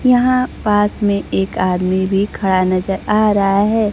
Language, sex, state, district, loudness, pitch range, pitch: Hindi, female, Bihar, Kaimur, -16 LUFS, 185-215 Hz, 200 Hz